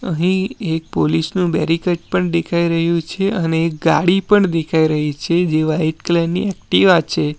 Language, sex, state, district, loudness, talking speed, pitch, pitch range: Gujarati, male, Gujarat, Valsad, -17 LUFS, 170 wpm, 165 Hz, 160-180 Hz